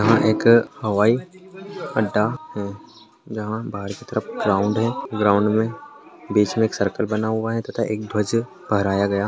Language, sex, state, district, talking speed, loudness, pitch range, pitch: Hindi, male, Maharashtra, Chandrapur, 155 wpm, -21 LUFS, 105-115 Hz, 110 Hz